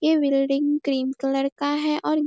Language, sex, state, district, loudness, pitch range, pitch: Hindi, female, Bihar, Darbhanga, -23 LUFS, 275-300 Hz, 285 Hz